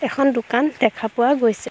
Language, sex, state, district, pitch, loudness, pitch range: Assamese, female, Assam, Hailakandi, 245 Hz, -19 LUFS, 230-275 Hz